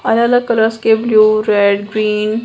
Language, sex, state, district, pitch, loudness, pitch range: Hindi, female, Bihar, Purnia, 215 Hz, -13 LUFS, 210-230 Hz